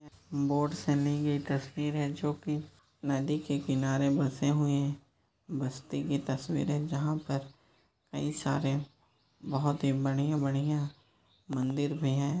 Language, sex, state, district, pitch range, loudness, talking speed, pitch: Hindi, male, Uttar Pradesh, Jyotiba Phule Nagar, 135-150 Hz, -32 LUFS, 135 wpm, 145 Hz